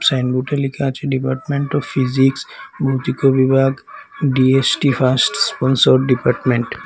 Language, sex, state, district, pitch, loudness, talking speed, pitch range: Bengali, male, Assam, Hailakandi, 135 Hz, -16 LUFS, 115 wpm, 130-140 Hz